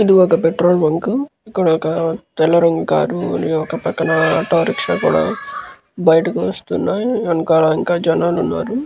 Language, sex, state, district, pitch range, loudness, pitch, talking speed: Telugu, male, Andhra Pradesh, Krishna, 160-190 Hz, -16 LUFS, 165 Hz, 140 wpm